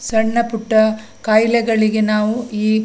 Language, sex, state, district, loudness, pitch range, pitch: Kannada, female, Karnataka, Dakshina Kannada, -16 LUFS, 215-225 Hz, 220 Hz